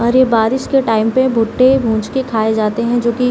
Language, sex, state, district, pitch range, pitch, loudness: Hindi, female, Bihar, Samastipur, 220-260 Hz, 235 Hz, -14 LUFS